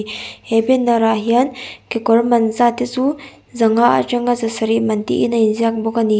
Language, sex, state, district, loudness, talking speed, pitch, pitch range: Mizo, female, Mizoram, Aizawl, -16 LUFS, 185 wpm, 230 Hz, 225-245 Hz